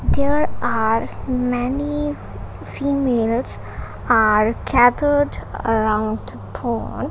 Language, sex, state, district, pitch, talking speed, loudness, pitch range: English, female, Punjab, Kapurthala, 245 Hz, 65 wpm, -20 LUFS, 225-280 Hz